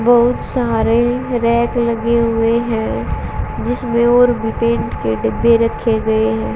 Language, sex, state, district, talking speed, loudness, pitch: Hindi, female, Haryana, Rohtak, 135 wpm, -16 LUFS, 225 Hz